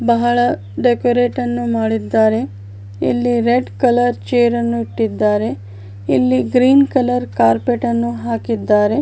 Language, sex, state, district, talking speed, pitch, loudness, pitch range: Kannada, female, Karnataka, Bijapur, 115 wpm, 235 Hz, -16 LUFS, 210-245 Hz